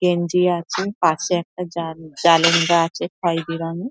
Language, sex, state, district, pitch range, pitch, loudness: Bengali, female, West Bengal, Dakshin Dinajpur, 165-180 Hz, 170 Hz, -19 LUFS